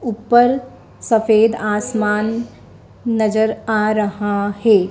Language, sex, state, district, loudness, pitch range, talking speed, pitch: Hindi, female, Madhya Pradesh, Dhar, -17 LUFS, 210-230 Hz, 85 wpm, 220 Hz